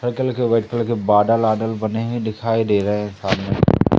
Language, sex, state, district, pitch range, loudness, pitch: Hindi, male, Madhya Pradesh, Umaria, 105-115 Hz, -19 LUFS, 110 Hz